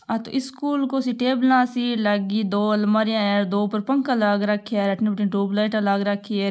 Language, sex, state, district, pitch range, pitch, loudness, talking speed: Marwari, female, Rajasthan, Nagaur, 205-250 Hz, 215 Hz, -22 LUFS, 195 wpm